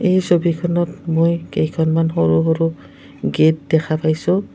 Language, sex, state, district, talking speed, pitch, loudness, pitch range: Assamese, female, Assam, Kamrup Metropolitan, 120 wpm, 165 Hz, -18 LUFS, 160-175 Hz